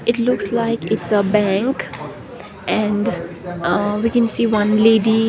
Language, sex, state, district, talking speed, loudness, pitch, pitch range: English, female, Sikkim, Gangtok, 145 wpm, -18 LUFS, 215 Hz, 205-230 Hz